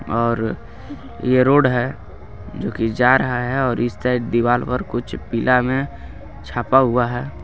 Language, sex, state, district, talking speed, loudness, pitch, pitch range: Hindi, male, Jharkhand, Garhwa, 155 wpm, -19 LUFS, 120 Hz, 115-130 Hz